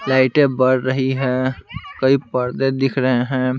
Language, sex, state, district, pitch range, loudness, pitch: Hindi, male, Bihar, Patna, 130-135 Hz, -18 LUFS, 130 Hz